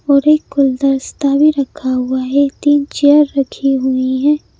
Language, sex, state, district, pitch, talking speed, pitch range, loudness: Hindi, female, Madhya Pradesh, Bhopal, 275 Hz, 170 wpm, 265-290 Hz, -14 LUFS